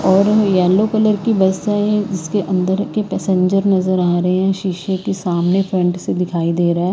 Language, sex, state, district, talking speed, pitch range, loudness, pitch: Hindi, female, Haryana, Rohtak, 200 wpm, 180-200 Hz, -16 LUFS, 190 Hz